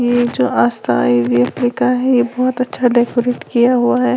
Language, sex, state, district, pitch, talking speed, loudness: Hindi, female, Uttar Pradesh, Lalitpur, 240 Hz, 185 wpm, -15 LUFS